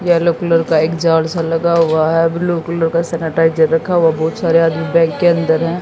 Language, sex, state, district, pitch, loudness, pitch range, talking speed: Hindi, female, Haryana, Jhajjar, 165 Hz, -14 LUFS, 165-170 Hz, 225 wpm